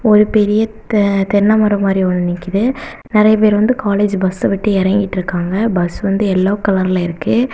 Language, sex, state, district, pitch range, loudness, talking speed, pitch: Tamil, female, Tamil Nadu, Kanyakumari, 190-215 Hz, -14 LUFS, 150 wpm, 200 Hz